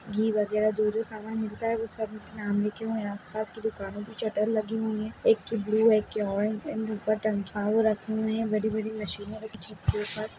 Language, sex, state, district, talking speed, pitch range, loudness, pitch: Hindi, female, Bihar, Begusarai, 235 wpm, 210-220 Hz, -29 LUFS, 215 Hz